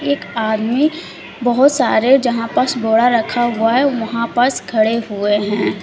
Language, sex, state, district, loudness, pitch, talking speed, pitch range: Hindi, female, Uttar Pradesh, Lalitpur, -16 LUFS, 235 Hz, 145 wpm, 220-255 Hz